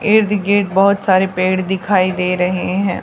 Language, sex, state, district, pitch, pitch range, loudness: Hindi, female, Haryana, Charkhi Dadri, 190 Hz, 185-200 Hz, -15 LUFS